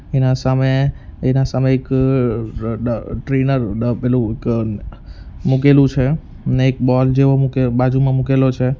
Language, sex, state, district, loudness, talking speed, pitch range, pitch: Gujarati, male, Gujarat, Valsad, -16 LUFS, 145 wpm, 120-135 Hz, 130 Hz